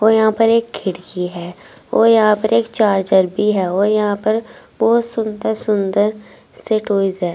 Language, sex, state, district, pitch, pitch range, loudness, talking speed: Hindi, female, Uttar Pradesh, Saharanpur, 210 Hz, 195-225 Hz, -16 LUFS, 180 wpm